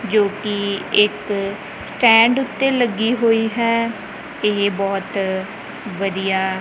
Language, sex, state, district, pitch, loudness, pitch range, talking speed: Punjabi, male, Punjab, Kapurthala, 210 Hz, -18 LUFS, 195-230 Hz, 100 wpm